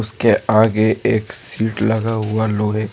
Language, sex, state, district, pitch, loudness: Hindi, male, Jharkhand, Ranchi, 110 Hz, -17 LUFS